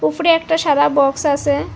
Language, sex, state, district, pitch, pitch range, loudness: Bengali, female, Assam, Hailakandi, 290 Hz, 280-320 Hz, -15 LUFS